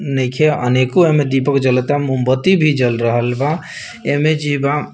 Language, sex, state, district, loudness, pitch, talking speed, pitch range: Bhojpuri, male, Bihar, Muzaffarpur, -15 LUFS, 140 Hz, 160 wpm, 130-150 Hz